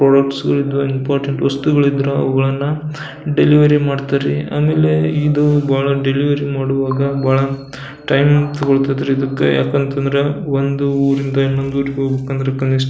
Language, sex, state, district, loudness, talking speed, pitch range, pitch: Kannada, male, Karnataka, Belgaum, -16 LUFS, 105 wpm, 135-140 Hz, 140 Hz